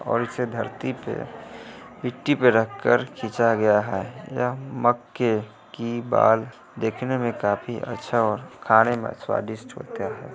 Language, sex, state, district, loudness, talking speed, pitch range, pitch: Hindi, male, Bihar, Vaishali, -24 LUFS, 140 wpm, 110-125 Hz, 120 Hz